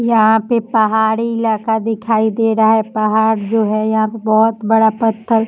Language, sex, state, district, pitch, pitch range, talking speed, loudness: Hindi, female, Uttar Pradesh, Jyotiba Phule Nagar, 220 Hz, 220-225 Hz, 185 wpm, -14 LUFS